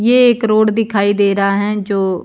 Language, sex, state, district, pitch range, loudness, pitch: Hindi, female, Himachal Pradesh, Shimla, 200-220 Hz, -14 LUFS, 205 Hz